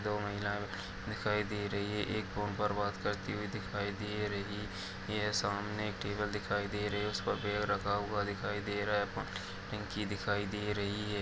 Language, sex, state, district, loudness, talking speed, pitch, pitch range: Hindi, male, Chhattisgarh, Sarguja, -36 LUFS, 200 wpm, 105 Hz, 100-105 Hz